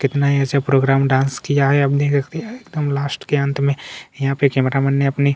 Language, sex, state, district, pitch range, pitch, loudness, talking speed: Hindi, male, Chhattisgarh, Kabirdham, 135-140 Hz, 140 Hz, -18 LUFS, 235 wpm